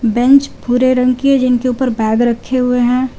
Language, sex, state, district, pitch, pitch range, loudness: Hindi, female, Jharkhand, Garhwa, 250 Hz, 245-255 Hz, -13 LUFS